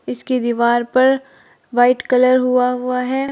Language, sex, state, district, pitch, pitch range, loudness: Hindi, female, Uttar Pradesh, Saharanpur, 250 Hz, 245-255 Hz, -16 LUFS